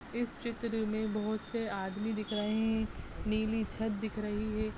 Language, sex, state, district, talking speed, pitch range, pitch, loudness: Hindi, female, Goa, North and South Goa, 175 wpm, 215-225 Hz, 220 Hz, -35 LUFS